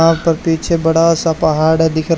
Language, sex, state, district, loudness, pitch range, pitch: Hindi, male, Haryana, Charkhi Dadri, -14 LUFS, 160-165 Hz, 165 Hz